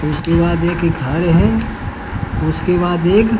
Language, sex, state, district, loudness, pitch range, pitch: Hindi, male, Bihar, Patna, -16 LUFS, 110-175 Hz, 165 Hz